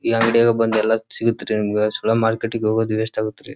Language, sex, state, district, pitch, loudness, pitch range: Kannada, male, Karnataka, Dharwad, 110 Hz, -19 LUFS, 110-115 Hz